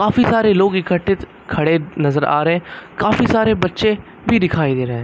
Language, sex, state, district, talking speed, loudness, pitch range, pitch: Hindi, male, Uttar Pradesh, Lucknow, 190 wpm, -17 LUFS, 160-215 Hz, 185 Hz